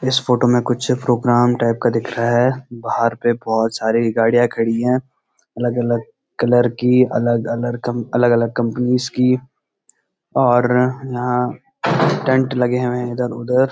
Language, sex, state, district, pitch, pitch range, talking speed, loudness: Hindi, male, Uttarakhand, Uttarkashi, 120 Hz, 120-125 Hz, 155 wpm, -18 LUFS